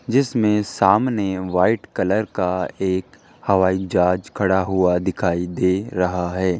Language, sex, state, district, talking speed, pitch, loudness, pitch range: Hindi, male, Rajasthan, Jaipur, 125 wpm, 95 Hz, -20 LUFS, 90-105 Hz